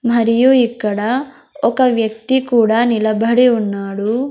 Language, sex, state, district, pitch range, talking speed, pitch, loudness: Telugu, female, Andhra Pradesh, Sri Satya Sai, 220-255 Hz, 95 wpm, 235 Hz, -15 LUFS